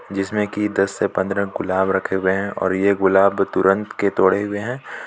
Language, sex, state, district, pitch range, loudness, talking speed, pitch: Hindi, male, Jharkhand, Palamu, 95-100 Hz, -19 LUFS, 200 wpm, 100 Hz